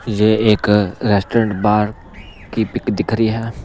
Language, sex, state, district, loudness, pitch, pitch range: Hindi, male, Punjab, Pathankot, -17 LUFS, 105 Hz, 105-110 Hz